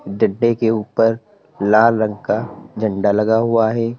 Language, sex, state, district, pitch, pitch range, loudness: Hindi, male, Uttar Pradesh, Lalitpur, 110 Hz, 105-115 Hz, -17 LUFS